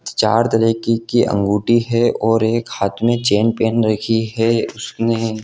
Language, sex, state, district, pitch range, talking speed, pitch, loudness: Hindi, male, Jharkhand, Jamtara, 110-115 Hz, 155 wpm, 115 Hz, -17 LUFS